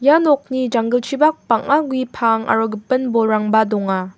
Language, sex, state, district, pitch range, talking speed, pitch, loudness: Garo, female, Meghalaya, West Garo Hills, 220-270 Hz, 145 wpm, 240 Hz, -17 LUFS